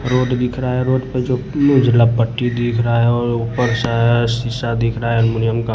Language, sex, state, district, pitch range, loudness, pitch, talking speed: Hindi, male, Himachal Pradesh, Shimla, 115-125 Hz, -17 LUFS, 120 Hz, 210 wpm